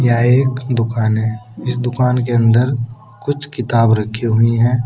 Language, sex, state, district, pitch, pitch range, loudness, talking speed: Hindi, male, Uttar Pradesh, Saharanpur, 120 Hz, 115-125 Hz, -16 LUFS, 160 wpm